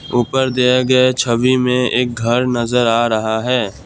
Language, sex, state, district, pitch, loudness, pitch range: Hindi, male, Assam, Kamrup Metropolitan, 125 Hz, -15 LUFS, 115-125 Hz